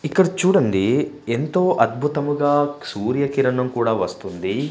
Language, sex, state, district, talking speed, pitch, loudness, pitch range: Telugu, male, Andhra Pradesh, Manyam, 100 wpm, 145 Hz, -20 LUFS, 120-150 Hz